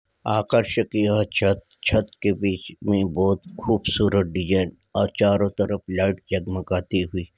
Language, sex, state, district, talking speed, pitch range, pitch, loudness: Hindi, male, Uttar Pradesh, Ghazipur, 140 wpm, 95-100 Hz, 100 Hz, -23 LUFS